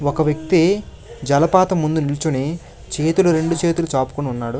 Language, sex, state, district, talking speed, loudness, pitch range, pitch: Telugu, male, Andhra Pradesh, Krishna, 130 wpm, -18 LUFS, 145-170 Hz, 160 Hz